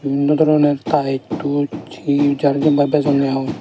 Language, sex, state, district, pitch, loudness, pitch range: Chakma, male, Tripura, Dhalai, 145 Hz, -17 LUFS, 140-150 Hz